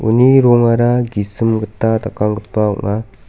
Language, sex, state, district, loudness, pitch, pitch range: Garo, male, Meghalaya, South Garo Hills, -14 LUFS, 110 Hz, 105-120 Hz